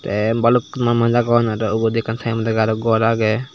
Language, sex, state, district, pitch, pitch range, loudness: Chakma, male, Tripura, Dhalai, 115 Hz, 110-120 Hz, -18 LUFS